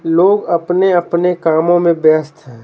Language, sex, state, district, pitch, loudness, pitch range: Hindi, male, Bihar, Patna, 170 Hz, -13 LUFS, 160-175 Hz